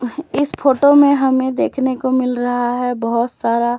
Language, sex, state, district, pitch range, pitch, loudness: Hindi, female, Jharkhand, Deoghar, 245-275 Hz, 260 Hz, -16 LUFS